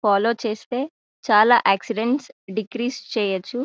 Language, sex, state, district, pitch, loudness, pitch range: Telugu, female, Karnataka, Bellary, 225 Hz, -21 LUFS, 210-245 Hz